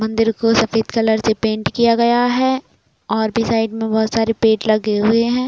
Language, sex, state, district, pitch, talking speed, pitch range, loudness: Hindi, female, Chhattisgarh, Raigarh, 225 Hz, 210 wpm, 220-230 Hz, -17 LUFS